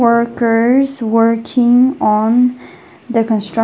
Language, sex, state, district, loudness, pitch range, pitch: English, female, Nagaland, Dimapur, -13 LUFS, 225-245 Hz, 235 Hz